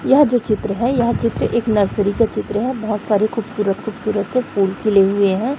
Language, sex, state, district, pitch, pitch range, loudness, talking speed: Hindi, female, Chhattisgarh, Raipur, 215 Hz, 205-235 Hz, -18 LUFS, 215 wpm